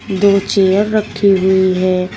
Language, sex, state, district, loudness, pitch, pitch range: Hindi, female, Uttar Pradesh, Shamli, -13 LUFS, 195 Hz, 190-200 Hz